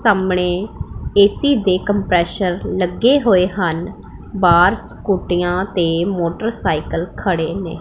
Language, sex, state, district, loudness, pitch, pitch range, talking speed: Punjabi, female, Punjab, Pathankot, -17 LUFS, 185 Hz, 175-200 Hz, 100 wpm